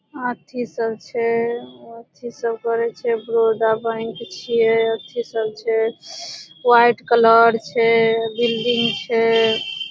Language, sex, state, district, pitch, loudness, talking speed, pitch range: Maithili, female, Bihar, Supaul, 230 Hz, -19 LUFS, 110 wpm, 225-235 Hz